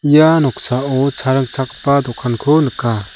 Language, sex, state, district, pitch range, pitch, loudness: Garo, male, Meghalaya, South Garo Hills, 125-145 Hz, 135 Hz, -15 LUFS